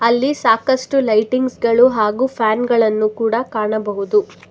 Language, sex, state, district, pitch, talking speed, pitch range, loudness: Kannada, female, Karnataka, Bangalore, 230 Hz, 120 wpm, 215-255 Hz, -16 LUFS